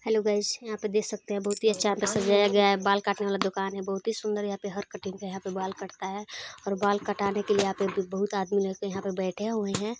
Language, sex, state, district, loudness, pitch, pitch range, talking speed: Hindi, female, Chhattisgarh, Balrampur, -28 LUFS, 200 Hz, 195-210 Hz, 295 wpm